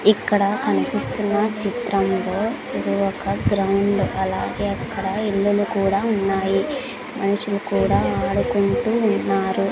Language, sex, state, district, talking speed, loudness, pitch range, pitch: Telugu, female, Andhra Pradesh, Sri Satya Sai, 90 wpm, -21 LUFS, 195-210 Hz, 200 Hz